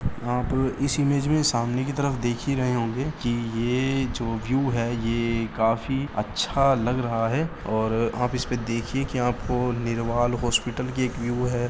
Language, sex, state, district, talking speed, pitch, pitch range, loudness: Hindi, male, Uttar Pradesh, Muzaffarnagar, 170 wpm, 125 Hz, 115-130 Hz, -25 LUFS